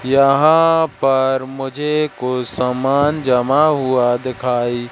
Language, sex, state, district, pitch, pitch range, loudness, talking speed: Hindi, male, Madhya Pradesh, Katni, 135 Hz, 125-150 Hz, -16 LUFS, 100 wpm